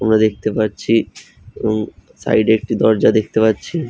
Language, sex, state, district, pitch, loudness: Bengali, male, West Bengal, Jhargram, 110 Hz, -16 LUFS